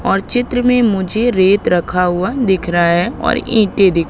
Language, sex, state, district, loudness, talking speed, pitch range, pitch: Hindi, female, Madhya Pradesh, Katni, -14 LUFS, 190 wpm, 180-235 Hz, 195 Hz